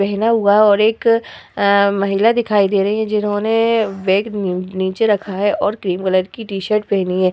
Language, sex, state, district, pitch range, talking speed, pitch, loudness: Hindi, female, Uttar Pradesh, Hamirpur, 195-220 Hz, 190 wpm, 205 Hz, -16 LUFS